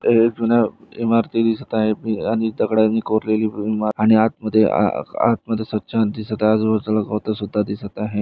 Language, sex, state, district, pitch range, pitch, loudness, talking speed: Marathi, male, Maharashtra, Nagpur, 105-110 Hz, 110 Hz, -19 LUFS, 115 wpm